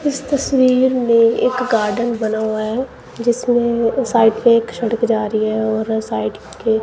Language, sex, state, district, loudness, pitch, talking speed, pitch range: Hindi, female, Punjab, Kapurthala, -17 LUFS, 230 Hz, 165 wpm, 220-250 Hz